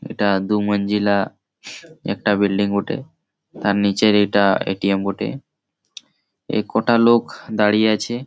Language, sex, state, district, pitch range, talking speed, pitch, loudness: Bengali, male, West Bengal, Malda, 100-105 Hz, 140 wpm, 100 Hz, -19 LUFS